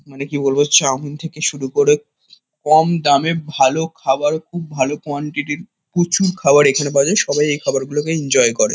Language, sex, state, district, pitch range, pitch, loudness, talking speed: Bengali, male, West Bengal, Kolkata, 145-165 Hz, 150 Hz, -16 LUFS, 170 wpm